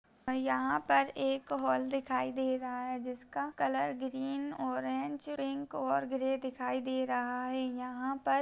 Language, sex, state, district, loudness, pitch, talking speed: Hindi, female, Chhattisgarh, Bilaspur, -35 LUFS, 250 Hz, 155 wpm